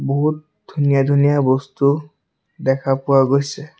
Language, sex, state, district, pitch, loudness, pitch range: Assamese, male, Assam, Sonitpur, 140 Hz, -18 LUFS, 135-150 Hz